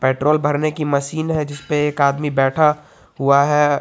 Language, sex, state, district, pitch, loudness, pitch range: Hindi, male, Jharkhand, Garhwa, 150 Hz, -18 LUFS, 140-150 Hz